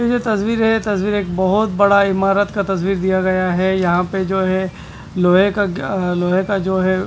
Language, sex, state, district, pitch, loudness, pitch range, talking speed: Hindi, male, Punjab, Fazilka, 190 Hz, -17 LUFS, 185-205 Hz, 195 wpm